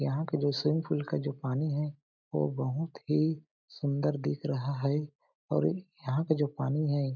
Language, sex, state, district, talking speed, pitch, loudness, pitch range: Hindi, male, Chhattisgarh, Balrampur, 185 wpm, 145 Hz, -32 LUFS, 135-150 Hz